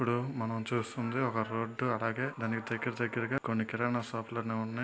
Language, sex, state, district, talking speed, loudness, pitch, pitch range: Telugu, male, Andhra Pradesh, Srikakulam, 160 wpm, -34 LUFS, 115 Hz, 115-120 Hz